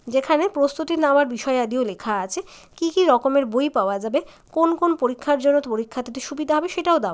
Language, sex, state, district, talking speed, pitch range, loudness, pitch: Bengali, female, West Bengal, Jalpaiguri, 195 wpm, 250-320 Hz, -21 LUFS, 285 Hz